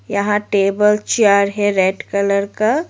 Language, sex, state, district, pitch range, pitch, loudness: Hindi, female, Arunachal Pradesh, Lower Dibang Valley, 200-210 Hz, 205 Hz, -16 LUFS